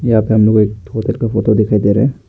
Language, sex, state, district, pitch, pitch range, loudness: Hindi, male, Arunachal Pradesh, Lower Dibang Valley, 110 Hz, 105-115 Hz, -14 LUFS